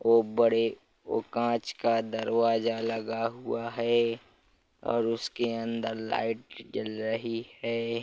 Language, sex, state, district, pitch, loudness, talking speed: Hindi, male, Chhattisgarh, Rajnandgaon, 115 Hz, -30 LUFS, 125 wpm